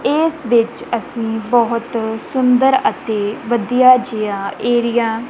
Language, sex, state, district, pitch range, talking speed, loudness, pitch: Punjabi, female, Punjab, Kapurthala, 225-250 Hz, 115 wpm, -16 LUFS, 235 Hz